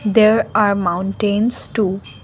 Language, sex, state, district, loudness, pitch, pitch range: English, female, Assam, Kamrup Metropolitan, -17 LUFS, 205 Hz, 200-220 Hz